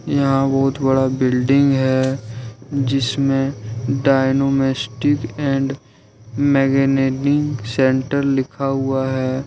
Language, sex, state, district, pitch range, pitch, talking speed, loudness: Hindi, male, Jharkhand, Ranchi, 130-135 Hz, 135 Hz, 80 wpm, -18 LUFS